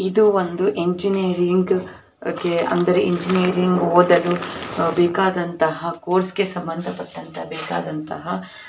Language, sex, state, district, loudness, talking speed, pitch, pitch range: Kannada, female, Karnataka, Belgaum, -20 LUFS, 90 wpm, 175 Hz, 170-185 Hz